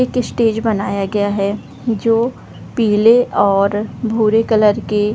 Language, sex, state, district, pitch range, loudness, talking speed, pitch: Hindi, female, Bihar, Darbhanga, 205-230 Hz, -16 LUFS, 140 wpm, 215 Hz